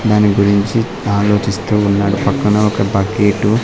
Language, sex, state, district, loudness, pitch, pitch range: Telugu, male, Andhra Pradesh, Sri Satya Sai, -14 LUFS, 105 Hz, 100-105 Hz